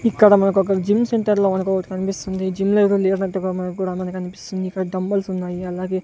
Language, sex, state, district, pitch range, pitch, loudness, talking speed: Telugu, male, Andhra Pradesh, Sri Satya Sai, 185-195 Hz, 190 Hz, -20 LUFS, 210 wpm